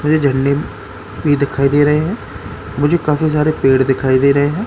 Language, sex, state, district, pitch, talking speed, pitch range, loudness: Hindi, male, Bihar, Katihar, 140 Hz, 195 wpm, 130-150 Hz, -14 LUFS